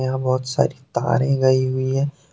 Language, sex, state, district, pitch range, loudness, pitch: Hindi, male, Jharkhand, Deoghar, 130-135 Hz, -20 LUFS, 130 Hz